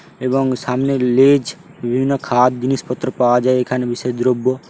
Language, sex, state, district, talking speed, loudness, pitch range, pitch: Bengali, male, West Bengal, Paschim Medinipur, 140 wpm, -17 LUFS, 125-135 Hz, 130 Hz